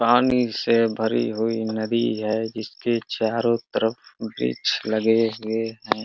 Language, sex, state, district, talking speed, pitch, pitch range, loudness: Hindi, male, Uttar Pradesh, Ghazipur, 130 wpm, 110 Hz, 110-115 Hz, -23 LUFS